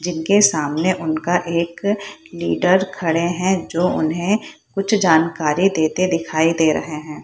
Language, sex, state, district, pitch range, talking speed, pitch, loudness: Hindi, female, Bihar, Purnia, 160-185 Hz, 135 wpm, 170 Hz, -18 LUFS